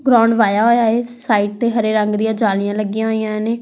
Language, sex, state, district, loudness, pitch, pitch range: Punjabi, female, Punjab, Fazilka, -16 LUFS, 220 Hz, 215-235 Hz